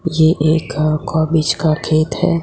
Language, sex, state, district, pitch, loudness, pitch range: Hindi, female, Gujarat, Gandhinagar, 160 Hz, -16 LUFS, 155-160 Hz